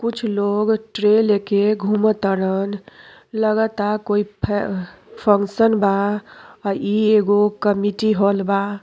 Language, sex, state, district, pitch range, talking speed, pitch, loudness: Bhojpuri, female, Uttar Pradesh, Deoria, 200-215 Hz, 110 wpm, 205 Hz, -19 LUFS